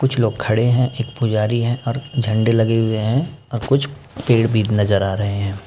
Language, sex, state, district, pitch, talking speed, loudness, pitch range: Hindi, male, Uttar Pradesh, Ghazipur, 115 Hz, 210 wpm, -19 LUFS, 110-125 Hz